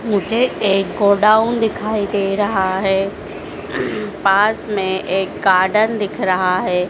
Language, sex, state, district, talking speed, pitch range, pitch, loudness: Hindi, female, Madhya Pradesh, Dhar, 120 wpm, 190-215 Hz, 200 Hz, -17 LUFS